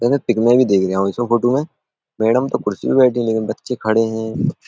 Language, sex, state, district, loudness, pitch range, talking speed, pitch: Hindi, male, Uttar Pradesh, Budaun, -17 LUFS, 110-125 Hz, 155 wpm, 120 Hz